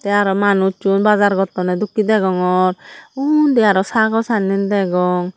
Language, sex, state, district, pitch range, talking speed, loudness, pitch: Chakma, female, Tripura, Dhalai, 190-215 Hz, 125 wpm, -16 LUFS, 200 Hz